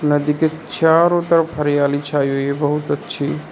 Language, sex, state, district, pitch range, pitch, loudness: Hindi, male, Arunachal Pradesh, Lower Dibang Valley, 145-160 Hz, 150 Hz, -17 LUFS